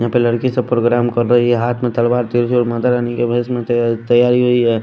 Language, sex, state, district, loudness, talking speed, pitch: Hindi, male, Delhi, New Delhi, -15 LUFS, 235 wpm, 120 Hz